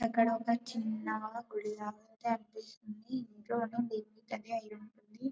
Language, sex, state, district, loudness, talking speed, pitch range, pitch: Telugu, female, Telangana, Karimnagar, -37 LUFS, 90 wpm, 215-230 Hz, 225 Hz